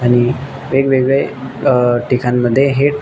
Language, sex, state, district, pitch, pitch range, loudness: Marathi, male, Maharashtra, Nagpur, 130 Hz, 120-135 Hz, -14 LUFS